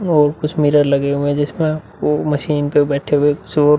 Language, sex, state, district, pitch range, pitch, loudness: Hindi, male, Uttar Pradesh, Muzaffarnagar, 145-150 Hz, 150 Hz, -16 LUFS